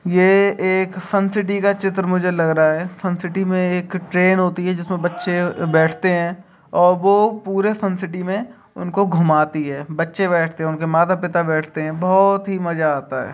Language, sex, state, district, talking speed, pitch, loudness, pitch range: Hindi, male, Bihar, Begusarai, 200 wpm, 180 Hz, -18 LUFS, 165-190 Hz